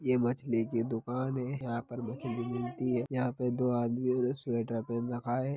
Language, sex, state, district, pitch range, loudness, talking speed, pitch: Hindi, male, Bihar, Lakhisarai, 120-125 Hz, -33 LUFS, 205 wpm, 120 Hz